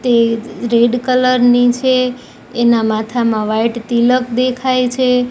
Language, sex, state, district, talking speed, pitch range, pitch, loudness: Gujarati, female, Gujarat, Gandhinagar, 125 wpm, 235-255 Hz, 245 Hz, -14 LUFS